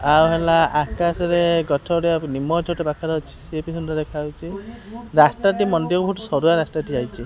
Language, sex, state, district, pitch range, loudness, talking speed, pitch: Odia, male, Odisha, Khordha, 150-175 Hz, -20 LUFS, 175 wpm, 165 Hz